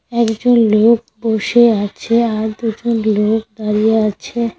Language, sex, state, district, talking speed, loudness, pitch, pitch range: Bengali, female, West Bengal, Cooch Behar, 120 wpm, -15 LUFS, 225 Hz, 215-235 Hz